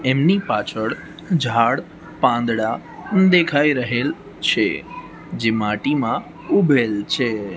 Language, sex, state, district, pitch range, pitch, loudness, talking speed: Gujarati, male, Gujarat, Gandhinagar, 110-155 Hz, 125 Hz, -19 LUFS, 85 wpm